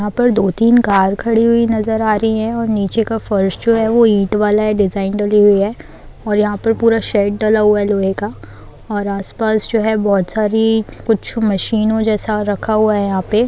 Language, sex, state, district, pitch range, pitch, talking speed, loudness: Hindi, female, Chhattisgarh, Bilaspur, 200-225 Hz, 215 Hz, 210 wpm, -15 LUFS